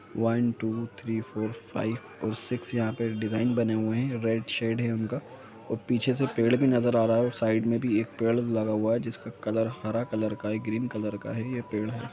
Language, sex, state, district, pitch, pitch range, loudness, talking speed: Hindi, male, Jharkhand, Sahebganj, 115 Hz, 110-120 Hz, -28 LUFS, 235 wpm